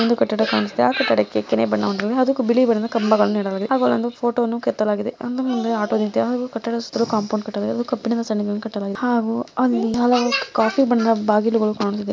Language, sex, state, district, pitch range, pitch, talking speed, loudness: Kannada, female, Karnataka, Mysore, 210-240 Hz, 225 Hz, 185 wpm, -20 LUFS